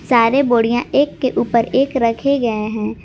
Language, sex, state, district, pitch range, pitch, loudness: Hindi, female, Jharkhand, Garhwa, 230-270 Hz, 240 Hz, -16 LUFS